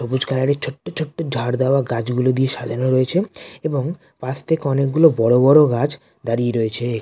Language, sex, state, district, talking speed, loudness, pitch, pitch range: Bengali, male, West Bengal, North 24 Parganas, 170 wpm, -19 LUFS, 130 Hz, 120-150 Hz